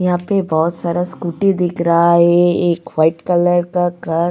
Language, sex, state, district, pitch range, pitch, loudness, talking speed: Hindi, female, Goa, North and South Goa, 170-180 Hz, 175 Hz, -15 LUFS, 195 wpm